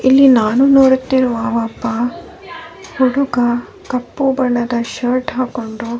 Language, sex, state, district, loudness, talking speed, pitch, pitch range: Kannada, female, Karnataka, Bellary, -15 LUFS, 100 wpm, 255 Hz, 240-270 Hz